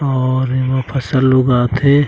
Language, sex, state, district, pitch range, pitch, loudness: Chhattisgarhi, male, Chhattisgarh, Raigarh, 130-135 Hz, 130 Hz, -15 LUFS